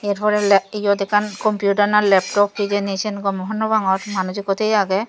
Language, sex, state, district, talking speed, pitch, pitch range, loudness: Chakma, female, Tripura, Dhalai, 175 wpm, 205 Hz, 195-210 Hz, -19 LUFS